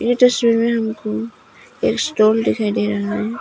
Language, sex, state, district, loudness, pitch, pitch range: Hindi, female, Arunachal Pradesh, Papum Pare, -18 LUFS, 220 Hz, 215-235 Hz